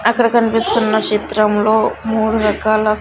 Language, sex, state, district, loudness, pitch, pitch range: Telugu, female, Andhra Pradesh, Sri Satya Sai, -15 LUFS, 220 Hz, 215-225 Hz